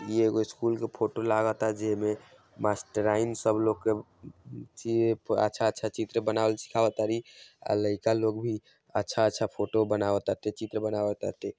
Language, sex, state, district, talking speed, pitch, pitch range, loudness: Bhojpuri, male, Bihar, Saran, 155 wpm, 110 Hz, 105-110 Hz, -29 LUFS